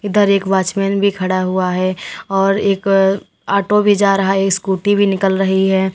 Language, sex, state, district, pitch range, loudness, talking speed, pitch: Hindi, female, Uttar Pradesh, Lalitpur, 190-200 Hz, -15 LUFS, 190 wpm, 195 Hz